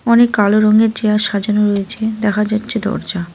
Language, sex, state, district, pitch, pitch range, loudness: Bengali, female, West Bengal, Cooch Behar, 210 Hz, 205-220 Hz, -15 LUFS